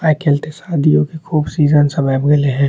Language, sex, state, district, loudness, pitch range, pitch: Maithili, male, Bihar, Saharsa, -15 LUFS, 145-155 Hz, 150 Hz